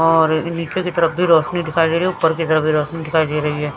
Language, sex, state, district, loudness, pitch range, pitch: Hindi, female, Himachal Pradesh, Shimla, -17 LUFS, 155-170 Hz, 165 Hz